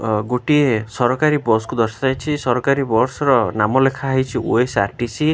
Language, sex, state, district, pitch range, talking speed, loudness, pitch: Odia, male, Odisha, Khordha, 115-140 Hz, 155 wpm, -18 LUFS, 125 Hz